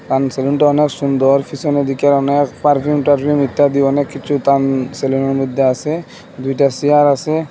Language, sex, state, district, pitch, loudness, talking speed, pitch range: Bengali, male, Assam, Hailakandi, 140 Hz, -15 LUFS, 135 wpm, 135-145 Hz